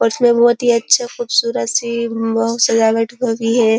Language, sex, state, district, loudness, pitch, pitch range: Hindi, female, Uttar Pradesh, Jyotiba Phule Nagar, -15 LUFS, 235 Hz, 225-240 Hz